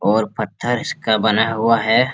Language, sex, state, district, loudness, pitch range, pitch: Hindi, male, Bihar, Jamui, -18 LUFS, 110-120 Hz, 110 Hz